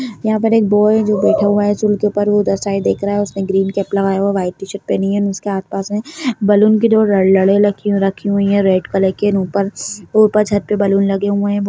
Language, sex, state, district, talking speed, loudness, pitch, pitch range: Kumaoni, female, Uttarakhand, Tehri Garhwal, 270 wpm, -15 LUFS, 200 Hz, 195-210 Hz